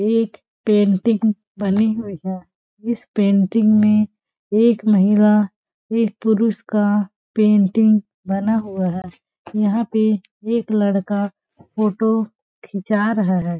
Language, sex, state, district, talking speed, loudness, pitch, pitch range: Hindi, female, Chhattisgarh, Balrampur, 110 wpm, -18 LUFS, 210 Hz, 200-220 Hz